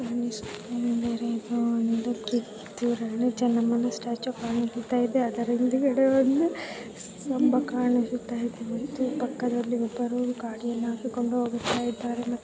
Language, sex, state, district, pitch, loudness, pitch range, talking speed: Kannada, female, Karnataka, Dharwad, 240 Hz, -27 LUFS, 235-245 Hz, 85 wpm